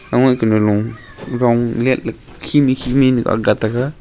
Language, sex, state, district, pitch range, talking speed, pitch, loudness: Wancho, male, Arunachal Pradesh, Longding, 110-130 Hz, 105 wpm, 120 Hz, -16 LUFS